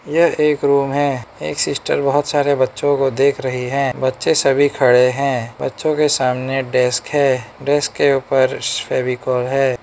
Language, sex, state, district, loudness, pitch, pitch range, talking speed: Hindi, male, Arunachal Pradesh, Lower Dibang Valley, -17 LUFS, 135 Hz, 130-145 Hz, 165 wpm